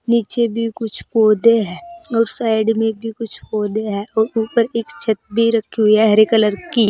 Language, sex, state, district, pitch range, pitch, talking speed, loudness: Hindi, female, Uttar Pradesh, Saharanpur, 215-230 Hz, 225 Hz, 200 wpm, -17 LUFS